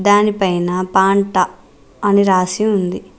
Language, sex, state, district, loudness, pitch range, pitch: Telugu, female, Telangana, Mahabubabad, -15 LUFS, 185-205 Hz, 190 Hz